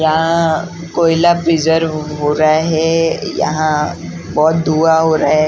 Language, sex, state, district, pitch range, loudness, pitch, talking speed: Hindi, male, Maharashtra, Gondia, 155-165 Hz, -14 LUFS, 160 Hz, 120 wpm